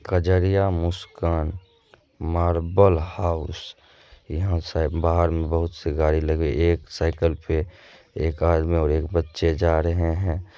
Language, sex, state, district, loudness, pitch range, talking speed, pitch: Maithili, male, Bihar, Madhepura, -23 LUFS, 80-90 Hz, 120 wpm, 85 Hz